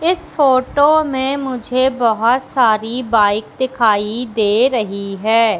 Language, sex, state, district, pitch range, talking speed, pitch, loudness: Hindi, female, Madhya Pradesh, Katni, 220-265 Hz, 120 wpm, 245 Hz, -16 LUFS